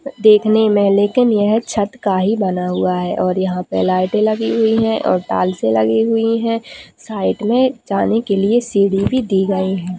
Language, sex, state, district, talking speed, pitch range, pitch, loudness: Hindi, female, Chhattisgarh, Sarguja, 190 wpm, 185-225 Hz, 205 Hz, -16 LUFS